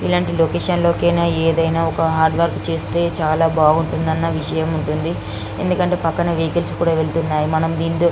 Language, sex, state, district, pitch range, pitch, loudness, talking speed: Telugu, female, Andhra Pradesh, Guntur, 160-170 Hz, 165 Hz, -18 LUFS, 135 wpm